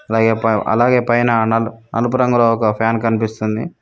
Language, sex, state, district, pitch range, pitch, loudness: Telugu, female, Telangana, Mahabubabad, 110-120 Hz, 115 Hz, -16 LUFS